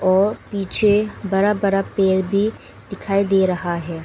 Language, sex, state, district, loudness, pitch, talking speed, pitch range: Hindi, female, Arunachal Pradesh, Longding, -18 LUFS, 195 Hz, 150 wpm, 190-205 Hz